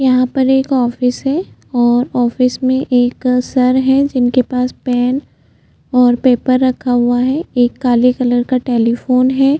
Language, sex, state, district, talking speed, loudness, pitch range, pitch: Hindi, female, Chhattisgarh, Jashpur, 155 wpm, -14 LUFS, 245-260 Hz, 250 Hz